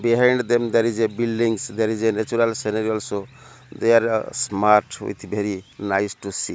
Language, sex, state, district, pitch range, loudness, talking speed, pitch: English, male, Odisha, Malkangiri, 105-115 Hz, -21 LUFS, 175 wpm, 110 Hz